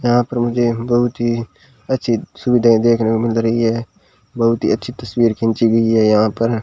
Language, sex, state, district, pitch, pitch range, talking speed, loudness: Hindi, male, Rajasthan, Bikaner, 115 Hz, 115-120 Hz, 200 wpm, -16 LUFS